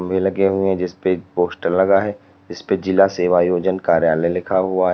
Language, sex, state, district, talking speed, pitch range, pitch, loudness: Hindi, male, Uttar Pradesh, Lalitpur, 170 wpm, 90-95 Hz, 95 Hz, -18 LUFS